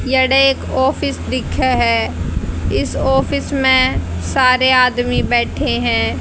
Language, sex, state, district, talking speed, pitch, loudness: Hindi, female, Haryana, Charkhi Dadri, 115 wpm, 240 Hz, -15 LUFS